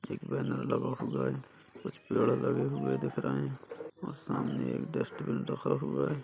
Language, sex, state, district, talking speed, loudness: Hindi, male, Maharashtra, Solapur, 180 wpm, -34 LUFS